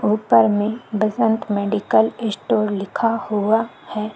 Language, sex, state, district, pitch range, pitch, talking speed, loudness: Hindi, female, Chhattisgarh, Korba, 205-225 Hz, 215 Hz, 115 wpm, -19 LUFS